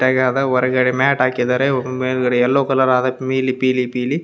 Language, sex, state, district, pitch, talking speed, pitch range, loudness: Kannada, male, Karnataka, Raichur, 130 Hz, 155 wpm, 125-130 Hz, -17 LUFS